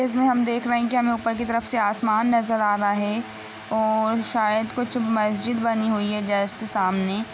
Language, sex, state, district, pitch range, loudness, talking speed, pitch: Hindi, female, Bihar, Purnia, 210-235 Hz, -22 LUFS, 190 wpm, 225 Hz